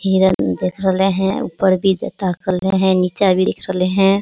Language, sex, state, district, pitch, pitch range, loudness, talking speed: Hindi, female, Bihar, Kishanganj, 190 Hz, 185-195 Hz, -17 LUFS, 215 wpm